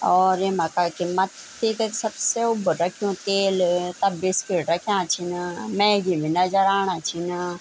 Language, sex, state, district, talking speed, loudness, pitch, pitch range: Garhwali, female, Uttarakhand, Tehri Garhwal, 140 wpm, -23 LUFS, 185 Hz, 175-200 Hz